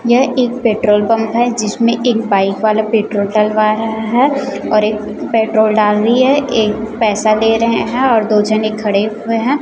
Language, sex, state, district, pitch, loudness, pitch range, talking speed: Hindi, female, Chhattisgarh, Raipur, 220 Hz, -14 LUFS, 215-235 Hz, 185 wpm